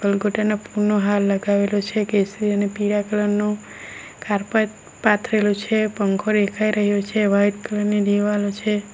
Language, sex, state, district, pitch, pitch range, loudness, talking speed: Gujarati, female, Gujarat, Valsad, 205 Hz, 205-210 Hz, -20 LUFS, 160 wpm